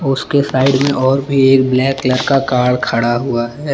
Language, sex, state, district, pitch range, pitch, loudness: Hindi, male, Jharkhand, Palamu, 130-135 Hz, 135 Hz, -14 LUFS